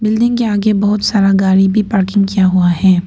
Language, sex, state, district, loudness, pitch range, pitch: Hindi, female, Arunachal Pradesh, Papum Pare, -12 LUFS, 190-215 Hz, 200 Hz